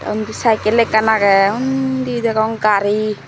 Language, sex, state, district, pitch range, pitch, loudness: Chakma, female, Tripura, Dhalai, 210-235 Hz, 220 Hz, -15 LUFS